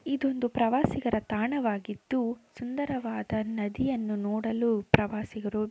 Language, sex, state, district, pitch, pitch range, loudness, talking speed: Kannada, female, Karnataka, Shimoga, 225 Hz, 215-255 Hz, -29 LUFS, 85 wpm